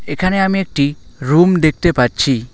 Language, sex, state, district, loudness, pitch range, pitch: Bengali, male, West Bengal, Alipurduar, -14 LUFS, 130-185 Hz, 150 Hz